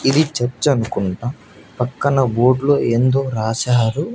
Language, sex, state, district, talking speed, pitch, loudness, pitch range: Telugu, male, Andhra Pradesh, Annamaya, 115 wpm, 125 Hz, -18 LUFS, 115-135 Hz